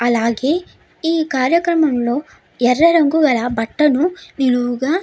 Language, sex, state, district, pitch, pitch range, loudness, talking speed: Telugu, female, Andhra Pradesh, Chittoor, 280 Hz, 245-325 Hz, -16 LUFS, 105 wpm